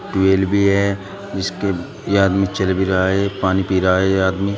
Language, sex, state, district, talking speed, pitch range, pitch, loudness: Hindi, male, Uttar Pradesh, Shamli, 210 wpm, 95-100 Hz, 95 Hz, -18 LUFS